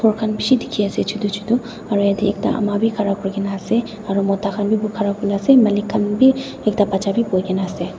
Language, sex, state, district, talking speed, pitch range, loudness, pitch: Nagamese, female, Nagaland, Dimapur, 235 wpm, 200-220 Hz, -19 LUFS, 205 Hz